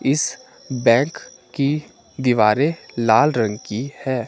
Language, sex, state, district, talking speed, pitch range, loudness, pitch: Hindi, male, Himachal Pradesh, Shimla, 110 wpm, 115-145 Hz, -19 LUFS, 130 Hz